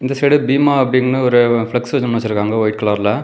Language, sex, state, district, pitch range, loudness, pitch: Tamil, male, Tamil Nadu, Kanyakumari, 110-135 Hz, -15 LUFS, 125 Hz